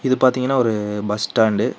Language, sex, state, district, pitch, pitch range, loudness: Tamil, male, Tamil Nadu, Nilgiris, 110 Hz, 105-130 Hz, -19 LUFS